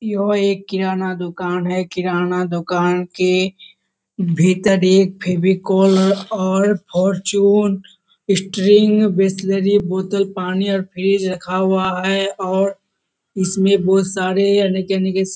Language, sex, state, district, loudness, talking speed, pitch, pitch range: Hindi, male, Bihar, Kishanganj, -17 LUFS, 115 wpm, 190 Hz, 185-195 Hz